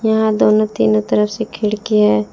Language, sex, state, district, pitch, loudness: Hindi, female, Jharkhand, Palamu, 210 Hz, -15 LUFS